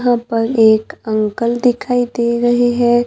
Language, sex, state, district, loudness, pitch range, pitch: Hindi, male, Maharashtra, Gondia, -15 LUFS, 230-245 Hz, 240 Hz